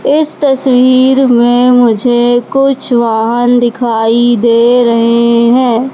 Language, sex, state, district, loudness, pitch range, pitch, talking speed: Hindi, female, Madhya Pradesh, Katni, -9 LUFS, 235-255 Hz, 245 Hz, 100 wpm